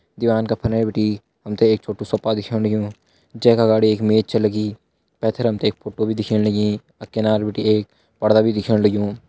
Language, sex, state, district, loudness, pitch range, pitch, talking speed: Hindi, male, Uttarakhand, Tehri Garhwal, -19 LUFS, 105-110 Hz, 110 Hz, 200 wpm